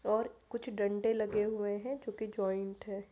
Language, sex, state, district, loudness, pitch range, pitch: Hindi, female, Bihar, Darbhanga, -36 LUFS, 205-225 Hz, 215 Hz